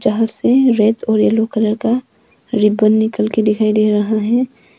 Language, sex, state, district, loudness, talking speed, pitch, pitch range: Hindi, female, Arunachal Pradesh, Longding, -15 LUFS, 175 wpm, 220 Hz, 215-225 Hz